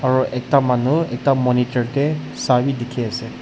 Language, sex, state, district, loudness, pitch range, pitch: Nagamese, male, Nagaland, Dimapur, -19 LUFS, 125-140 Hz, 125 Hz